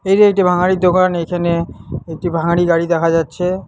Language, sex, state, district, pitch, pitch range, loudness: Bengali, male, West Bengal, Alipurduar, 175 Hz, 165-185 Hz, -15 LUFS